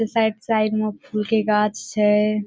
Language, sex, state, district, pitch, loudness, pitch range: Maithili, female, Bihar, Saharsa, 215 Hz, -21 LUFS, 210-220 Hz